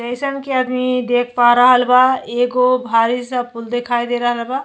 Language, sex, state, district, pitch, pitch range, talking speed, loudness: Bhojpuri, female, Uttar Pradesh, Deoria, 245 Hz, 240-255 Hz, 195 wpm, -16 LUFS